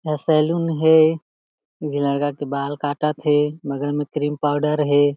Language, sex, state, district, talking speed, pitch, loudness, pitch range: Chhattisgarhi, male, Chhattisgarh, Jashpur, 165 wpm, 150 Hz, -20 LUFS, 145-155 Hz